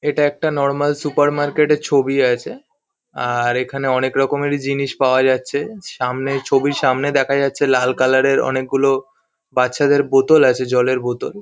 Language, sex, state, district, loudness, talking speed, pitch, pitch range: Bengali, male, West Bengal, Kolkata, -17 LUFS, 150 wpm, 135 Hz, 130-145 Hz